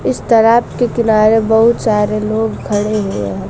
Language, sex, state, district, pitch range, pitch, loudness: Hindi, female, Bihar, West Champaran, 210-230 Hz, 220 Hz, -13 LUFS